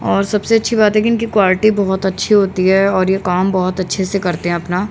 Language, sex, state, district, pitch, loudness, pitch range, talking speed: Hindi, female, Haryana, Rohtak, 195 Hz, -15 LUFS, 185-210 Hz, 255 wpm